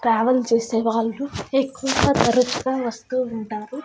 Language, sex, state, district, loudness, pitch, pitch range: Telugu, female, Andhra Pradesh, Annamaya, -21 LUFS, 245 Hz, 230-260 Hz